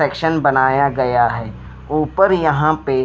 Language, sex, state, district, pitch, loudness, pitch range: Hindi, male, Himachal Pradesh, Shimla, 140 Hz, -16 LUFS, 130-155 Hz